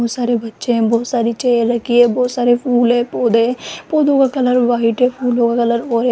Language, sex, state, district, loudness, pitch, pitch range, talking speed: Hindi, female, Rajasthan, Jaipur, -15 LUFS, 240 Hz, 235-250 Hz, 245 wpm